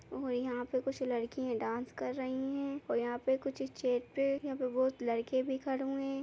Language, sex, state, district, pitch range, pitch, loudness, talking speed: Kumaoni, female, Uttarakhand, Uttarkashi, 245-270 Hz, 260 Hz, -36 LUFS, 220 wpm